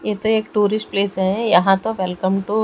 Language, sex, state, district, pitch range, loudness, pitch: Hindi, female, Odisha, Khordha, 190-215 Hz, -18 LUFS, 205 Hz